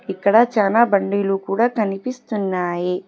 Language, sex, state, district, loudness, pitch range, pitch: Telugu, female, Telangana, Hyderabad, -19 LUFS, 195-230 Hz, 200 Hz